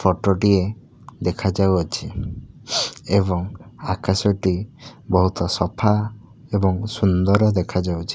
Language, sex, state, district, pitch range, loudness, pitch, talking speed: Odia, male, Odisha, Khordha, 90-105 Hz, -21 LUFS, 95 Hz, 80 wpm